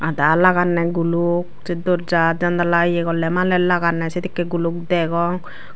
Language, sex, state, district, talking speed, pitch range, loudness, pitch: Chakma, female, Tripura, Dhalai, 125 wpm, 170-180 Hz, -19 LUFS, 170 Hz